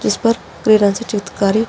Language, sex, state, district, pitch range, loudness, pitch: Hindi, female, Chhattisgarh, Rajnandgaon, 200-230 Hz, -16 LUFS, 215 Hz